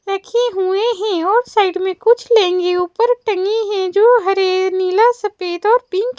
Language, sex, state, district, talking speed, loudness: Hindi, female, Madhya Pradesh, Bhopal, 165 wpm, -15 LUFS